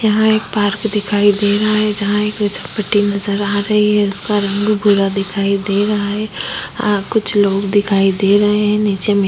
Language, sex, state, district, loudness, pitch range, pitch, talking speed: Hindi, female, Chhattisgarh, Kabirdham, -15 LUFS, 200-210 Hz, 205 Hz, 195 wpm